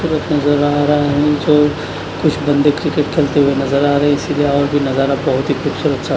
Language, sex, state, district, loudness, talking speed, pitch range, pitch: Hindi, male, Punjab, Kapurthala, -15 LUFS, 155 wpm, 140-150 Hz, 145 Hz